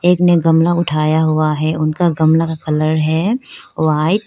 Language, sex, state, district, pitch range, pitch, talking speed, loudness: Hindi, female, Arunachal Pradesh, Lower Dibang Valley, 155-170 Hz, 160 Hz, 180 wpm, -15 LUFS